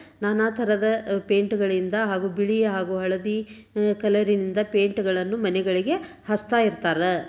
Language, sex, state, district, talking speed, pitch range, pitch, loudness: Kannada, female, Karnataka, Dharwad, 125 wpm, 190-220 Hz, 205 Hz, -24 LUFS